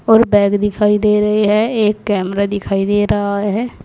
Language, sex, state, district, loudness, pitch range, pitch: Hindi, female, Uttar Pradesh, Saharanpur, -15 LUFS, 205-210 Hz, 205 Hz